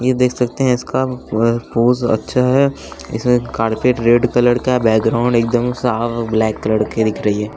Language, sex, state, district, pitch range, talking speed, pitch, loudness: Hindi, male, Bihar, West Champaran, 110-125 Hz, 190 wpm, 120 Hz, -16 LUFS